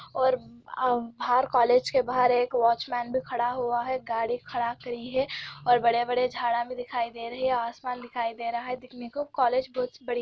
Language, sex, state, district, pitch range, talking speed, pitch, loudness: Hindi, female, Andhra Pradesh, Anantapur, 235-255 Hz, 210 wpm, 245 Hz, -27 LUFS